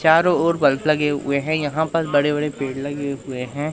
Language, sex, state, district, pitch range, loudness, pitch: Hindi, male, Madhya Pradesh, Umaria, 140-155 Hz, -20 LUFS, 145 Hz